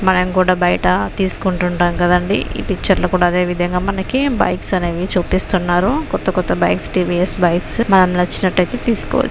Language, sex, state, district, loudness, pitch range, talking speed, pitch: Telugu, female, Andhra Pradesh, Anantapur, -16 LUFS, 175-190 Hz, 150 wpm, 180 Hz